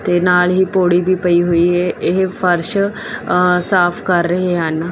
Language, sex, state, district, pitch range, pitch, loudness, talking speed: Punjabi, female, Punjab, Fazilka, 175-185 Hz, 180 Hz, -15 LUFS, 170 wpm